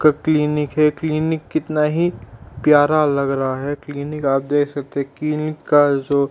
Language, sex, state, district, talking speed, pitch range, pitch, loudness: Hindi, male, Uttar Pradesh, Jalaun, 170 wpm, 140-155 Hz, 145 Hz, -19 LUFS